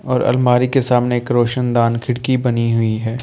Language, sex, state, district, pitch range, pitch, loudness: Hindi, male, Delhi, New Delhi, 115-125 Hz, 125 Hz, -16 LUFS